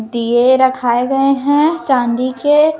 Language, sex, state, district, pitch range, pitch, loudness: Hindi, female, Chhattisgarh, Raipur, 245-290 Hz, 260 Hz, -13 LUFS